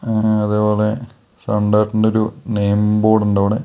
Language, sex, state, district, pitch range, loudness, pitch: Malayalam, male, Kerala, Kasaragod, 105-110 Hz, -17 LUFS, 105 Hz